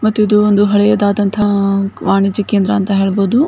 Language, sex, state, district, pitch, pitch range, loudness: Kannada, female, Karnataka, Bijapur, 205 Hz, 195-210 Hz, -13 LUFS